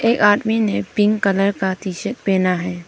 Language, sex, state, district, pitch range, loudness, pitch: Hindi, female, Arunachal Pradesh, Papum Pare, 185-210 Hz, -18 LUFS, 195 Hz